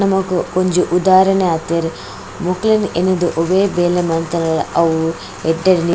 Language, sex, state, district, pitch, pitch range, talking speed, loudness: Tulu, female, Karnataka, Dakshina Kannada, 175 Hz, 165-185 Hz, 120 wpm, -16 LUFS